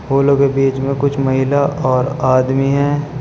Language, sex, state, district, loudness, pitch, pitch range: Hindi, male, Uttar Pradesh, Shamli, -15 LUFS, 135 Hz, 135-140 Hz